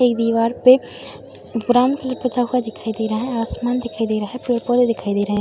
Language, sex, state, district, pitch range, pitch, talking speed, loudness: Hindi, female, Bihar, Supaul, 225-250 Hz, 240 Hz, 235 wpm, -19 LUFS